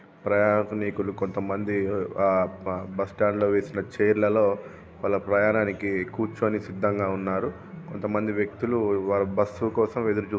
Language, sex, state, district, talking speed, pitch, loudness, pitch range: Telugu, male, Telangana, Karimnagar, 115 wpm, 100 Hz, -26 LUFS, 100-105 Hz